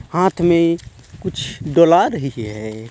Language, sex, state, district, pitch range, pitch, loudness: Hindi, male, Jharkhand, Deoghar, 120-170 Hz, 140 Hz, -17 LUFS